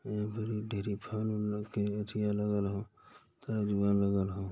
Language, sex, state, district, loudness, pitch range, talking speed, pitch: Hindi, male, Bihar, Jamui, -34 LUFS, 100-105 Hz, 145 wpm, 105 Hz